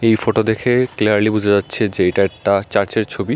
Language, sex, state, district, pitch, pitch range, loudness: Bengali, male, Tripura, Unakoti, 105 Hz, 100-110 Hz, -17 LUFS